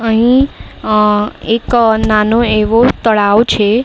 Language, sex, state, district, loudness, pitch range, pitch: Gujarati, female, Maharashtra, Mumbai Suburban, -11 LUFS, 215-235 Hz, 220 Hz